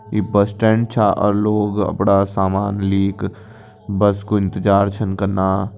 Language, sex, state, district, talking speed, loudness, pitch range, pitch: Kumaoni, male, Uttarakhand, Tehri Garhwal, 145 wpm, -18 LUFS, 100-105 Hz, 100 Hz